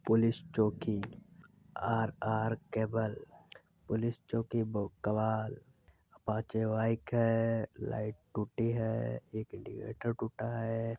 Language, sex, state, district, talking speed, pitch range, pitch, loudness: Hindi, male, Uttar Pradesh, Muzaffarnagar, 75 wpm, 110-115 Hz, 110 Hz, -35 LUFS